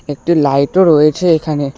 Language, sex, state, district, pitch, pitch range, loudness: Bengali, male, West Bengal, Alipurduar, 150 Hz, 145-165 Hz, -12 LUFS